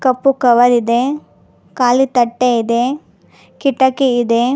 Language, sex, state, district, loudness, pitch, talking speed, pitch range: Kannada, female, Karnataka, Bangalore, -14 LUFS, 250 Hz, 105 wpm, 240-265 Hz